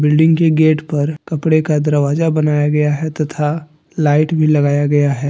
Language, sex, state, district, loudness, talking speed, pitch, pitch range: Hindi, male, Jharkhand, Deoghar, -15 LUFS, 180 wpm, 150 Hz, 150-155 Hz